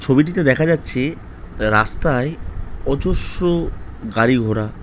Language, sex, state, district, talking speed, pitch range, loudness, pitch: Bengali, male, West Bengal, North 24 Parganas, 85 wpm, 105-155 Hz, -19 LUFS, 125 Hz